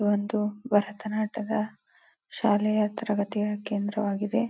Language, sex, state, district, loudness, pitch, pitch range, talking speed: Kannada, female, Karnataka, Gulbarga, -28 LUFS, 210 Hz, 205-215 Hz, 65 wpm